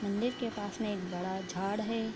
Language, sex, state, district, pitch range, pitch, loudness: Hindi, female, Bihar, Bhagalpur, 190-220 Hz, 205 Hz, -35 LUFS